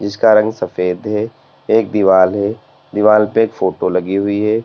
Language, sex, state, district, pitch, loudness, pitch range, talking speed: Hindi, male, Uttar Pradesh, Lalitpur, 105 Hz, -15 LUFS, 100-110 Hz, 165 wpm